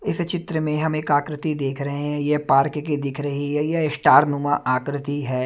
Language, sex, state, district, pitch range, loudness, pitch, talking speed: Hindi, male, Punjab, Kapurthala, 140-150 Hz, -22 LUFS, 145 Hz, 220 wpm